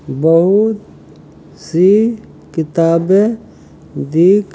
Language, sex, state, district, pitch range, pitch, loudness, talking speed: Hindi, male, Uttar Pradesh, Hamirpur, 165-210 Hz, 185 Hz, -13 LUFS, 65 wpm